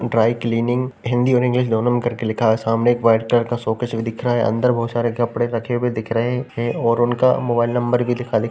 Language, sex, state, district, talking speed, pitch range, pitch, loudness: Hindi, male, Uttar Pradesh, Jalaun, 255 wpm, 115-120 Hz, 120 Hz, -19 LUFS